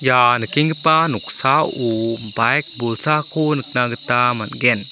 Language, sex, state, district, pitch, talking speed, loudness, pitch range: Garo, male, Meghalaya, South Garo Hills, 125 Hz, 95 wpm, -18 LUFS, 115-150 Hz